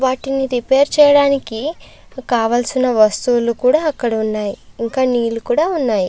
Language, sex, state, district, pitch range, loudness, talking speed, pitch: Telugu, female, Andhra Pradesh, Chittoor, 230-275 Hz, -16 LUFS, 120 wpm, 255 Hz